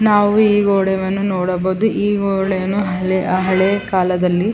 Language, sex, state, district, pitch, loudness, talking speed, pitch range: Kannada, female, Karnataka, Chamarajanagar, 190 Hz, -16 LUFS, 120 wpm, 185-205 Hz